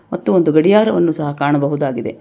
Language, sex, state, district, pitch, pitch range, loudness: Kannada, female, Karnataka, Bangalore, 145 Hz, 140-170 Hz, -15 LUFS